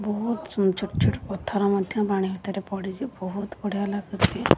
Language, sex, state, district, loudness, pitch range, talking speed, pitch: Odia, female, Odisha, Khordha, -27 LUFS, 195-210 Hz, 155 wpm, 200 Hz